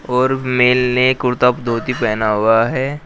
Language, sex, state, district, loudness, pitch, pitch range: Hindi, male, Uttar Pradesh, Shamli, -15 LUFS, 125 Hz, 120-130 Hz